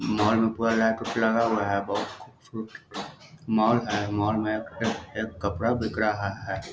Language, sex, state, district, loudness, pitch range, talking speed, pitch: Hindi, male, Bihar, Darbhanga, -26 LUFS, 105-115 Hz, 160 wpm, 110 Hz